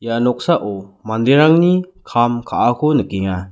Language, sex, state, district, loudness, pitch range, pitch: Garo, male, Meghalaya, West Garo Hills, -16 LUFS, 105-150 Hz, 120 Hz